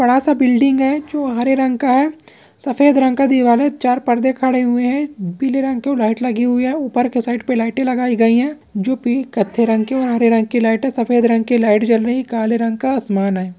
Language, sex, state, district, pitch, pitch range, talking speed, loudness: Hindi, female, Bihar, Samastipur, 250 Hz, 230-265 Hz, 255 wpm, -16 LUFS